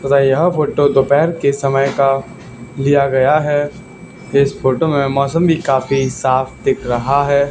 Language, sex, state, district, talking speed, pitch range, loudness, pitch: Hindi, male, Haryana, Charkhi Dadri, 160 wpm, 135-145 Hz, -15 LUFS, 140 Hz